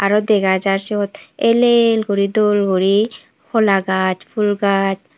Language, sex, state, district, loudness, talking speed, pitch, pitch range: Chakma, female, Tripura, Unakoti, -16 LUFS, 150 wpm, 200 Hz, 195-215 Hz